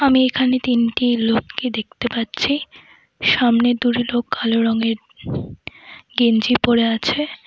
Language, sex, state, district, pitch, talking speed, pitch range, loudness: Bengali, female, West Bengal, Jalpaiguri, 240 Hz, 110 wpm, 230-255 Hz, -19 LUFS